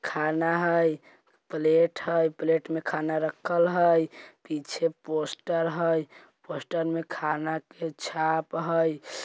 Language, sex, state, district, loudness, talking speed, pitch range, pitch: Bajjika, male, Bihar, Vaishali, -27 LUFS, 115 wpm, 155-165 Hz, 160 Hz